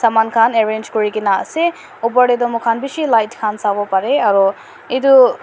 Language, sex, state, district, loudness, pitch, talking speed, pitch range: Nagamese, female, Nagaland, Dimapur, -15 LUFS, 225 Hz, 175 wpm, 215-250 Hz